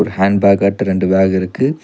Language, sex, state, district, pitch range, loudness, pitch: Tamil, male, Tamil Nadu, Nilgiris, 95-100 Hz, -14 LUFS, 100 Hz